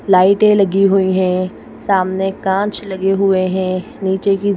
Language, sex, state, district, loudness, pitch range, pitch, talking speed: Hindi, female, Madhya Pradesh, Bhopal, -15 LUFS, 185-195 Hz, 195 Hz, 145 wpm